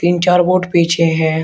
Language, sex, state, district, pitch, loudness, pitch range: Hindi, male, Uttar Pradesh, Shamli, 170 Hz, -13 LUFS, 165-180 Hz